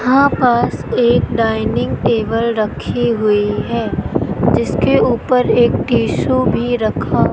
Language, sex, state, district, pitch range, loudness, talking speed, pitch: Hindi, female, Madhya Pradesh, Katni, 220-245 Hz, -15 LUFS, 115 wpm, 235 Hz